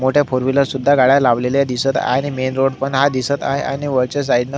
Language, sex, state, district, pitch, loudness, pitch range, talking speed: Marathi, male, Maharashtra, Solapur, 135 Hz, -17 LUFS, 130-140 Hz, 235 wpm